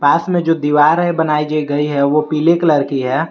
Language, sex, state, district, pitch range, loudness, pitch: Hindi, male, Jharkhand, Garhwa, 145-165 Hz, -14 LUFS, 150 Hz